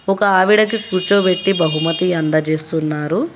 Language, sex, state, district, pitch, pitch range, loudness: Telugu, female, Telangana, Hyderabad, 180 Hz, 160-195 Hz, -16 LUFS